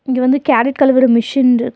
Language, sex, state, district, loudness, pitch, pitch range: Tamil, female, Tamil Nadu, Nilgiris, -13 LUFS, 260 Hz, 245-275 Hz